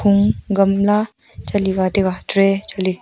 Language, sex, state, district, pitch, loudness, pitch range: Wancho, female, Arunachal Pradesh, Longding, 195 Hz, -17 LUFS, 190-205 Hz